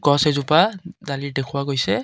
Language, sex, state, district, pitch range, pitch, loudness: Assamese, male, Assam, Kamrup Metropolitan, 140-175 Hz, 145 Hz, -20 LUFS